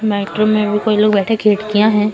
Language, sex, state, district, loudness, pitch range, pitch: Hindi, female, Uttar Pradesh, Lucknow, -14 LUFS, 210-215 Hz, 210 Hz